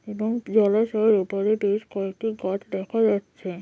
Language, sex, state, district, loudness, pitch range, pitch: Bengali, female, West Bengal, Paschim Medinipur, -24 LUFS, 195-220 Hz, 210 Hz